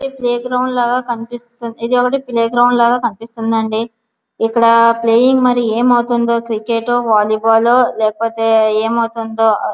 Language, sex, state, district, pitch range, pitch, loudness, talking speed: Telugu, female, Andhra Pradesh, Visakhapatnam, 225-245 Hz, 235 Hz, -14 LUFS, 110 wpm